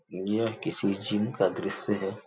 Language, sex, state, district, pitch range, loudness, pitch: Hindi, male, Uttar Pradesh, Gorakhpur, 100-110 Hz, -30 LUFS, 105 Hz